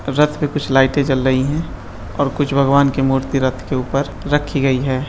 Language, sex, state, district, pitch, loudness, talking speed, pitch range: Hindi, male, Bihar, Madhepura, 135 Hz, -17 LUFS, 210 wpm, 130-145 Hz